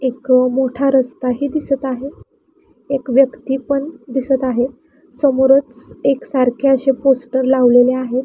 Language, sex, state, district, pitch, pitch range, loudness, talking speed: Marathi, female, Maharashtra, Pune, 265 Hz, 255-275 Hz, -16 LUFS, 115 wpm